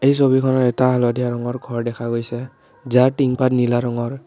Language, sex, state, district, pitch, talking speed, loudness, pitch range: Assamese, male, Assam, Kamrup Metropolitan, 125 Hz, 170 wpm, -19 LUFS, 120-130 Hz